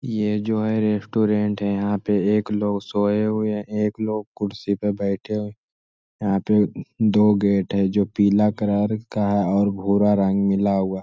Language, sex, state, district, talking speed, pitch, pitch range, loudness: Hindi, male, Bihar, Jamui, 170 wpm, 105 Hz, 100-105 Hz, -21 LUFS